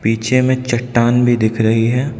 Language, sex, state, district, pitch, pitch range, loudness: Hindi, male, Arunachal Pradesh, Lower Dibang Valley, 120 Hz, 115-130 Hz, -15 LUFS